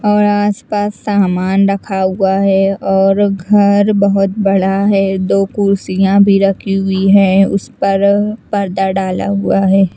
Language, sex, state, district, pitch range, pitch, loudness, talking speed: Hindi, female, Chandigarh, Chandigarh, 195-200 Hz, 195 Hz, -13 LUFS, 140 wpm